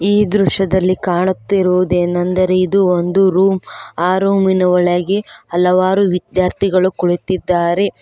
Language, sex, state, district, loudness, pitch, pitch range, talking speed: Kannada, female, Karnataka, Koppal, -15 LUFS, 185 Hz, 180-195 Hz, 90 wpm